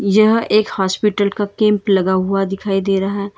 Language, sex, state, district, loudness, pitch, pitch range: Hindi, female, Karnataka, Bangalore, -16 LUFS, 200 Hz, 195-210 Hz